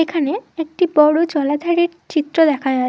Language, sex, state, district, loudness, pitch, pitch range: Bengali, female, West Bengal, Dakshin Dinajpur, -17 LUFS, 315 Hz, 295-340 Hz